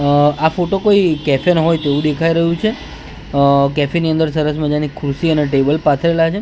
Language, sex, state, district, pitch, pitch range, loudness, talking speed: Gujarati, male, Gujarat, Gandhinagar, 155 Hz, 145-165 Hz, -15 LUFS, 205 wpm